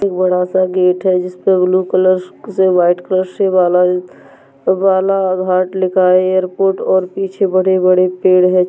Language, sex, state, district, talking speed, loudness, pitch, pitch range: Hindi, male, Chhattisgarh, Balrampur, 125 wpm, -13 LUFS, 185 Hz, 185-190 Hz